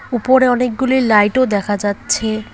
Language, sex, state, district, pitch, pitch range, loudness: Bengali, female, West Bengal, Cooch Behar, 240 Hz, 210-260 Hz, -15 LUFS